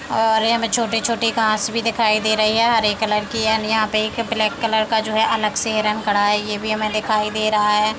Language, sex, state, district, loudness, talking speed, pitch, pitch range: Hindi, female, Uttar Pradesh, Deoria, -18 LUFS, 255 wpm, 220 Hz, 215-225 Hz